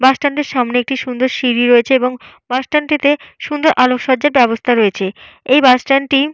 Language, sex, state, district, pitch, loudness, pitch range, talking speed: Bengali, female, Jharkhand, Jamtara, 260 Hz, -14 LUFS, 245-285 Hz, 180 wpm